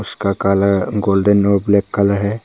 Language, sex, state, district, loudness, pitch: Hindi, male, Arunachal Pradesh, Papum Pare, -15 LUFS, 100 Hz